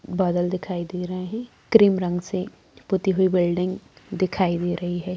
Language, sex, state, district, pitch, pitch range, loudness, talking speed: Hindi, female, Bihar, Jamui, 185 Hz, 175-190 Hz, -23 LUFS, 175 wpm